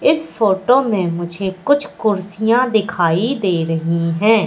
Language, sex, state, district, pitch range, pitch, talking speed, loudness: Hindi, female, Madhya Pradesh, Katni, 175-235 Hz, 205 Hz, 135 wpm, -17 LUFS